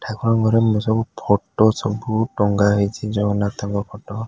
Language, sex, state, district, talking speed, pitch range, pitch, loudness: Odia, male, Odisha, Khordha, 155 wpm, 100-110 Hz, 105 Hz, -19 LUFS